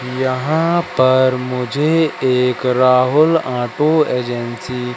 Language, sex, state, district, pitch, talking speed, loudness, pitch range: Hindi, male, Madhya Pradesh, Katni, 130 Hz, 95 wpm, -16 LUFS, 125-150 Hz